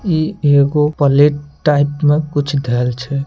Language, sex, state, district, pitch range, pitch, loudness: Maithili, male, Bihar, Samastipur, 140-150 Hz, 145 Hz, -15 LUFS